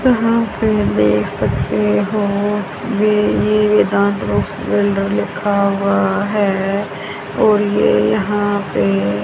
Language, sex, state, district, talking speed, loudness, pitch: Hindi, female, Haryana, Charkhi Dadri, 110 wpm, -16 LUFS, 195 Hz